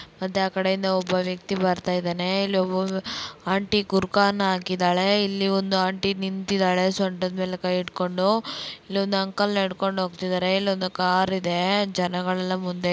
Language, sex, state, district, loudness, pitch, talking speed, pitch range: Kannada, female, Karnataka, Dakshina Kannada, -24 LUFS, 190 Hz, 135 wpm, 185-195 Hz